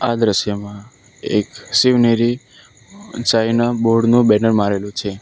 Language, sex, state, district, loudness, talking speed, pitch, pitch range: Gujarati, male, Gujarat, Valsad, -16 LUFS, 115 wpm, 115 Hz, 105-120 Hz